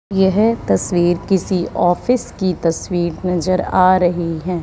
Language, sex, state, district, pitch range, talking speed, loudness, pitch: Hindi, female, Haryana, Charkhi Dadri, 175-190 Hz, 130 wpm, -17 LUFS, 180 Hz